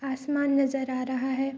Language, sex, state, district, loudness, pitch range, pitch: Hindi, female, Bihar, Araria, -27 LUFS, 260-275 Hz, 270 Hz